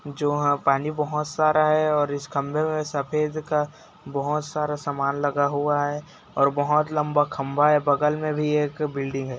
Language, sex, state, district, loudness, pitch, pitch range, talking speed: Hindi, male, Chhattisgarh, Raigarh, -24 LUFS, 150 Hz, 145-150 Hz, 185 wpm